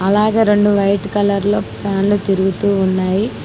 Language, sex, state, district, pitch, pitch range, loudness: Telugu, female, Telangana, Mahabubabad, 200 Hz, 195-205 Hz, -15 LUFS